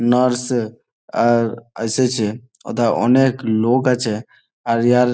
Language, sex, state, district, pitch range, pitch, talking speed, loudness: Bengali, male, West Bengal, Malda, 115-125 Hz, 120 Hz, 140 wpm, -18 LUFS